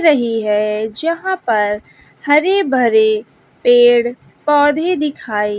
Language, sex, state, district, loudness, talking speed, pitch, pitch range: Hindi, female, Bihar, West Champaran, -15 LUFS, 95 wpm, 240 Hz, 215-300 Hz